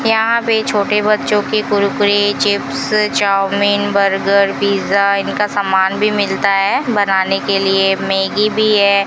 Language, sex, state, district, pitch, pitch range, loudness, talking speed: Hindi, female, Rajasthan, Bikaner, 200 Hz, 195-210 Hz, -14 LUFS, 140 wpm